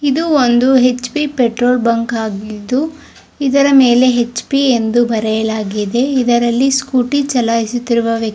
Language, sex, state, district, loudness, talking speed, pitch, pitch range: Kannada, female, Karnataka, Dharwad, -14 LUFS, 110 wpm, 245 Hz, 230-270 Hz